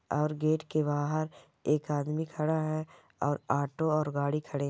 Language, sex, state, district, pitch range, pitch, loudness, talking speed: Hindi, female, Bihar, Jamui, 145-155 Hz, 150 Hz, -31 LUFS, 180 wpm